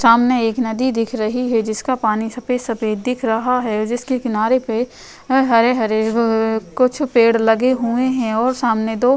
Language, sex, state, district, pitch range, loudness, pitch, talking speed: Hindi, female, Uttar Pradesh, Jyotiba Phule Nagar, 225-250 Hz, -17 LUFS, 235 Hz, 185 wpm